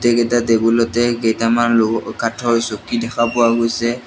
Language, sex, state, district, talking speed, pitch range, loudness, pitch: Assamese, male, Assam, Sonitpur, 145 wpm, 115-120 Hz, -16 LUFS, 115 Hz